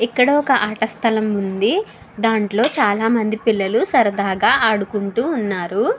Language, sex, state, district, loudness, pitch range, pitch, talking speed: Telugu, female, Andhra Pradesh, Krishna, -18 LUFS, 205-230 Hz, 220 Hz, 110 wpm